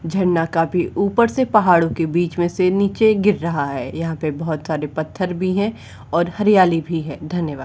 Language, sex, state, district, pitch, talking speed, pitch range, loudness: Hindi, female, Uttar Pradesh, Varanasi, 175 Hz, 195 wpm, 160-195 Hz, -19 LUFS